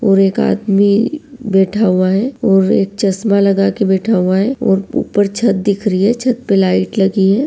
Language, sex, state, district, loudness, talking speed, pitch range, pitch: Hindi, female, Uttar Pradesh, Varanasi, -14 LUFS, 200 wpm, 195-220 Hz, 200 Hz